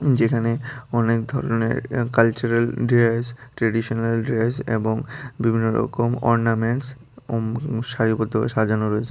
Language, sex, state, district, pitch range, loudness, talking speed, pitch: Bengali, female, Tripura, West Tripura, 115-120 Hz, -22 LUFS, 100 wpm, 115 Hz